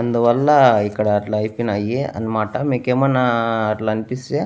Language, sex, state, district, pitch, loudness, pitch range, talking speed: Telugu, male, Andhra Pradesh, Annamaya, 115 Hz, -18 LUFS, 105-125 Hz, 120 wpm